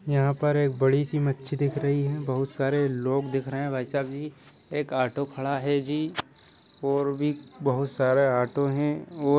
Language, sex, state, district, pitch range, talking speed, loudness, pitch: Hindi, male, Bihar, Begusarai, 135-145 Hz, 185 wpm, -27 LUFS, 140 Hz